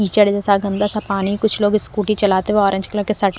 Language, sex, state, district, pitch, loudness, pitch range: Hindi, female, Haryana, Rohtak, 205 Hz, -17 LUFS, 200-210 Hz